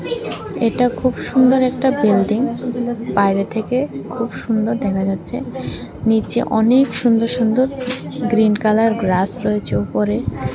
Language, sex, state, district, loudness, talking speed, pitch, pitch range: Bengali, female, Tripura, West Tripura, -18 LUFS, 115 wpm, 225 Hz, 200-250 Hz